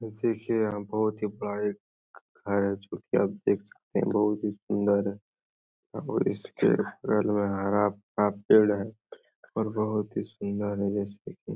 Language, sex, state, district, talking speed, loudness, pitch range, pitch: Hindi, male, Bihar, Araria, 165 wpm, -28 LUFS, 100-105 Hz, 105 Hz